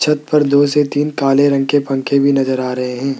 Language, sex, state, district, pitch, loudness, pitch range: Hindi, male, Rajasthan, Jaipur, 140 Hz, -15 LUFS, 135-145 Hz